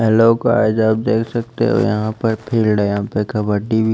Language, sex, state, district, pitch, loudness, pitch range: Hindi, male, Chandigarh, Chandigarh, 110 Hz, -17 LUFS, 105-115 Hz